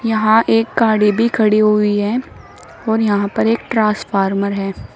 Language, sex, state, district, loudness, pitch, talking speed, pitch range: Hindi, female, Uttar Pradesh, Shamli, -15 LUFS, 215 Hz, 155 wpm, 205-225 Hz